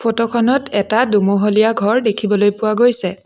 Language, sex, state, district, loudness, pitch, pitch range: Assamese, female, Assam, Sonitpur, -15 LUFS, 220 Hz, 205-235 Hz